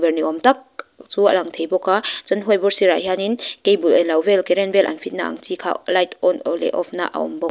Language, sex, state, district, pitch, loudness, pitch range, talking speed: Mizo, female, Mizoram, Aizawl, 185 Hz, -19 LUFS, 170-200 Hz, 270 wpm